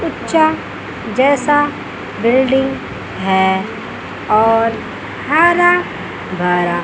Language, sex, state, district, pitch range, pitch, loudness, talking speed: Hindi, female, Chandigarh, Chandigarh, 195-290 Hz, 235 Hz, -15 LUFS, 60 wpm